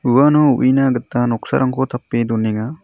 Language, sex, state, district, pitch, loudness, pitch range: Garo, male, Meghalaya, South Garo Hills, 125 Hz, -16 LUFS, 115-135 Hz